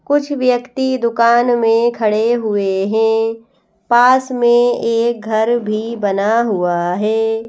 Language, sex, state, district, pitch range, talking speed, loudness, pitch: Hindi, female, Madhya Pradesh, Bhopal, 220-240 Hz, 120 wpm, -15 LUFS, 230 Hz